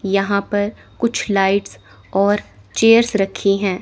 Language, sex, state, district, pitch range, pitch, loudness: Hindi, female, Chandigarh, Chandigarh, 195-210 Hz, 200 Hz, -18 LUFS